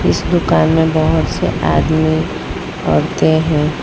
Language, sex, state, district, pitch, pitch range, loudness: Hindi, female, Gujarat, Valsad, 155 Hz, 155-160 Hz, -15 LUFS